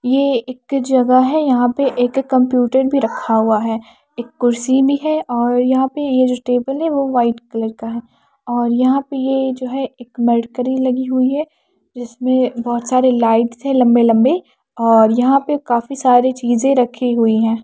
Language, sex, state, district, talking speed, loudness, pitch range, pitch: Hindi, female, Odisha, Nuapada, 185 wpm, -16 LUFS, 235-265 Hz, 250 Hz